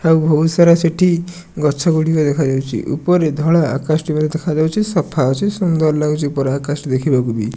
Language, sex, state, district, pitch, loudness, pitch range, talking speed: Odia, male, Odisha, Nuapada, 155 Hz, -16 LUFS, 145-170 Hz, 150 wpm